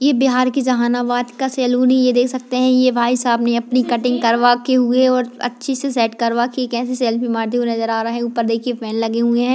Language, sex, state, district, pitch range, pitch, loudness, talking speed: Hindi, female, Bihar, Jahanabad, 235-255 Hz, 245 Hz, -17 LUFS, 240 wpm